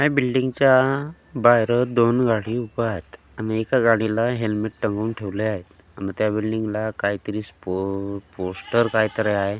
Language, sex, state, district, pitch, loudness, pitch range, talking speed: Marathi, male, Maharashtra, Gondia, 110 Hz, -22 LUFS, 100-120 Hz, 145 wpm